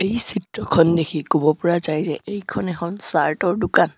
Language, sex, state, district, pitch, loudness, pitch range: Assamese, male, Assam, Sonitpur, 170 Hz, -19 LUFS, 160-200 Hz